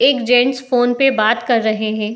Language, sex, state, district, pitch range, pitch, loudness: Hindi, female, Uttar Pradesh, Etah, 220-255 Hz, 245 Hz, -15 LUFS